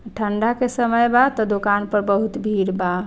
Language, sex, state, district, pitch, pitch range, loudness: Bhojpuri, female, Bihar, Saran, 215 Hz, 205-235 Hz, -19 LUFS